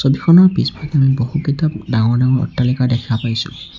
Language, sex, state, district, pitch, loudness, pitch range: Assamese, male, Assam, Sonitpur, 135 Hz, -15 LUFS, 120-155 Hz